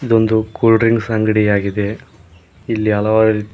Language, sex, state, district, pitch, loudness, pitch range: Kannada, male, Karnataka, Koppal, 110 Hz, -15 LUFS, 105-115 Hz